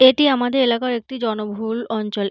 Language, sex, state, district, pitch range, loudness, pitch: Bengali, female, West Bengal, North 24 Parganas, 220-260 Hz, -20 LUFS, 235 Hz